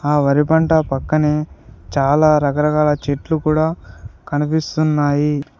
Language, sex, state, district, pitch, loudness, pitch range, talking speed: Telugu, male, Telangana, Komaram Bheem, 150 Hz, -17 LUFS, 145-155 Hz, 95 wpm